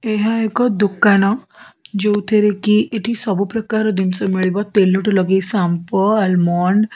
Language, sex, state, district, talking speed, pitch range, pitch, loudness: Odia, female, Odisha, Khordha, 140 wpm, 190-215 Hz, 205 Hz, -16 LUFS